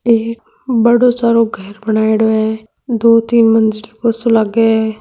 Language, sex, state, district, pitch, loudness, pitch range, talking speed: Marwari, female, Rajasthan, Nagaur, 225 Hz, -13 LUFS, 220-230 Hz, 155 wpm